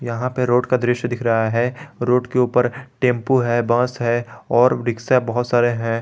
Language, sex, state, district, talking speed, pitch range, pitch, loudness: Hindi, male, Jharkhand, Garhwa, 200 wpm, 120-125 Hz, 120 Hz, -19 LUFS